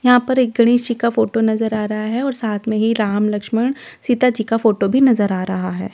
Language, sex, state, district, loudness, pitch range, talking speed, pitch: Hindi, female, Delhi, New Delhi, -17 LUFS, 210-245 Hz, 260 wpm, 225 Hz